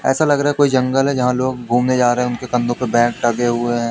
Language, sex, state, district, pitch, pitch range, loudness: Hindi, male, Madhya Pradesh, Katni, 125 Hz, 120-130 Hz, -17 LUFS